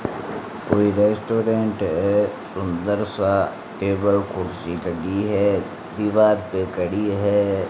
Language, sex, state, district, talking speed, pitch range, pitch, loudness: Hindi, male, Rajasthan, Bikaner, 100 wpm, 95-105 Hz, 100 Hz, -22 LUFS